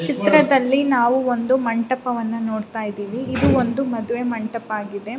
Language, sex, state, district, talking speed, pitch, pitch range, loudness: Kannada, female, Karnataka, Raichur, 125 wpm, 240 Hz, 225-260 Hz, -20 LUFS